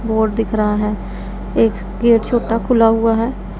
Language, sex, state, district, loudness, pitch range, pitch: Hindi, female, Punjab, Pathankot, -16 LUFS, 215-230 Hz, 225 Hz